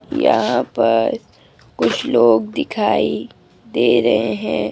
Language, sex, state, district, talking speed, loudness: Hindi, female, Himachal Pradesh, Shimla, 100 wpm, -17 LUFS